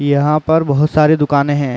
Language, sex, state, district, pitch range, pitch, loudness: Hindi, male, Uttar Pradesh, Muzaffarnagar, 140-155 Hz, 145 Hz, -13 LUFS